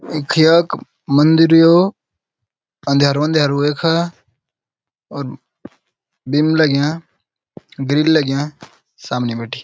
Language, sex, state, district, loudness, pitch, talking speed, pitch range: Garhwali, male, Uttarakhand, Uttarkashi, -15 LUFS, 150 Hz, 95 wpm, 140-160 Hz